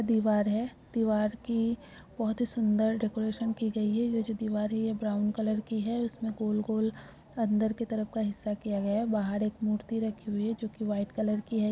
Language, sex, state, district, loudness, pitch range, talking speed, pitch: Hindi, female, Bihar, Jahanabad, -31 LUFS, 210-225 Hz, 215 wpm, 220 Hz